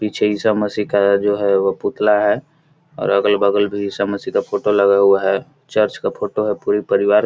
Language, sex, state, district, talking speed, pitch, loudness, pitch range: Hindi, male, Bihar, Gaya, 200 wpm, 105 Hz, -17 LUFS, 100-105 Hz